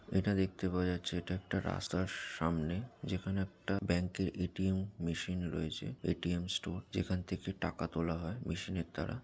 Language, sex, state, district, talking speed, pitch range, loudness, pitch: Bengali, male, West Bengal, Jalpaiguri, 160 wpm, 85-95 Hz, -38 LUFS, 90 Hz